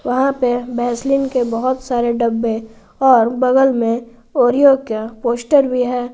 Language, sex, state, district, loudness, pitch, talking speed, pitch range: Hindi, female, Jharkhand, Garhwa, -16 LUFS, 245 Hz, 145 wpm, 235-260 Hz